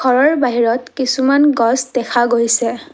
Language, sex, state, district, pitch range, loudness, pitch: Assamese, female, Assam, Kamrup Metropolitan, 235-265 Hz, -15 LUFS, 250 Hz